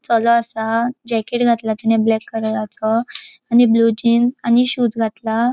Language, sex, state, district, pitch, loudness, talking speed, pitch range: Konkani, female, Goa, North and South Goa, 230 Hz, -17 LUFS, 140 wpm, 220-240 Hz